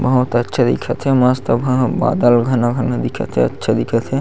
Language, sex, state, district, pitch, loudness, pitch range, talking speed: Chhattisgarhi, male, Chhattisgarh, Sarguja, 125 Hz, -16 LUFS, 120-130 Hz, 185 wpm